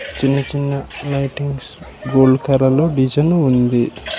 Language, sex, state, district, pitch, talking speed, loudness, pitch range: Telugu, male, Andhra Pradesh, Manyam, 135 Hz, 100 wpm, -16 LUFS, 130-145 Hz